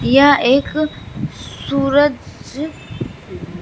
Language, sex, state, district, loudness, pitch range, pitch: Hindi, female, Bihar, Katihar, -16 LUFS, 270-295 Hz, 280 Hz